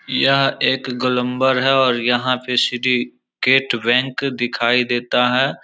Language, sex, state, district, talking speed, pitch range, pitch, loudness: Hindi, male, Bihar, Samastipur, 140 wpm, 120-130 Hz, 125 Hz, -17 LUFS